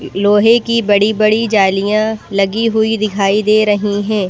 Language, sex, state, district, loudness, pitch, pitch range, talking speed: Hindi, female, Madhya Pradesh, Bhopal, -13 LUFS, 210 Hz, 205-220 Hz, 140 wpm